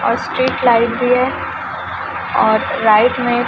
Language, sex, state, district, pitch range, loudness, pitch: Hindi, female, Chhattisgarh, Raipur, 225-255 Hz, -15 LUFS, 240 Hz